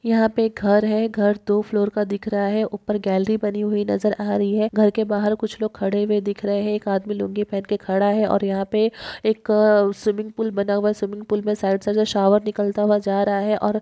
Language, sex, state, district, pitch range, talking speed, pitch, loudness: Hindi, female, Maharashtra, Dhule, 205-215 Hz, 245 wpm, 210 Hz, -21 LUFS